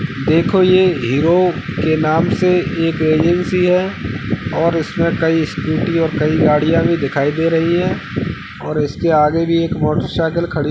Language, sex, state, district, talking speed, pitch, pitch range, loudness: Hindi, male, Uttar Pradesh, Hamirpur, 170 wpm, 165 Hz, 155-170 Hz, -16 LUFS